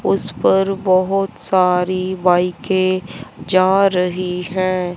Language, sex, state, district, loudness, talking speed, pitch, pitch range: Hindi, male, Haryana, Rohtak, -17 LUFS, 95 wpm, 185 Hz, 180-190 Hz